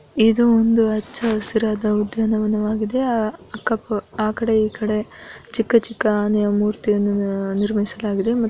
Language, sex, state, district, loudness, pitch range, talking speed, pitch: Kannada, female, Karnataka, Bellary, -19 LUFS, 210-225 Hz, 120 wpm, 215 Hz